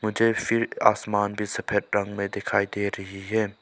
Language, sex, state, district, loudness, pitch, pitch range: Hindi, male, Arunachal Pradesh, Lower Dibang Valley, -25 LUFS, 105 Hz, 100-110 Hz